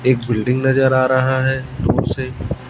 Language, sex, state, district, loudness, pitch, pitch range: Hindi, male, Chhattisgarh, Raipur, -17 LUFS, 130 Hz, 125-130 Hz